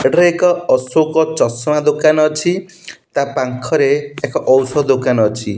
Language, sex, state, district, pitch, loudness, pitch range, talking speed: Odia, male, Odisha, Nuapada, 150 Hz, -15 LUFS, 130-160 Hz, 120 wpm